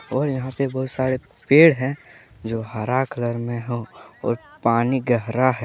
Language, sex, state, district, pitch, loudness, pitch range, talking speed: Hindi, male, Jharkhand, Deoghar, 125 Hz, -22 LUFS, 120-130 Hz, 170 wpm